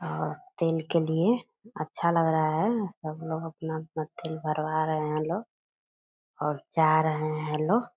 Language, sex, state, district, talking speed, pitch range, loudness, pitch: Hindi, female, Bihar, Purnia, 165 wpm, 155-170 Hz, -28 LUFS, 160 Hz